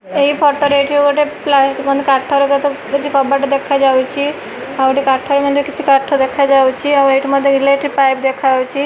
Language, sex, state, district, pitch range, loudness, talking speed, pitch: Odia, female, Odisha, Malkangiri, 270-285 Hz, -13 LUFS, 155 wpm, 275 Hz